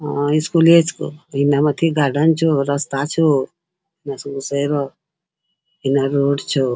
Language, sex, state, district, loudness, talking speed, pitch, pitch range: Angika, female, Bihar, Bhagalpur, -17 LUFS, 115 wpm, 145 Hz, 140-165 Hz